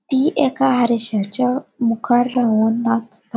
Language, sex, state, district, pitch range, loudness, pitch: Konkani, female, Goa, North and South Goa, 230-255 Hz, -18 LUFS, 240 Hz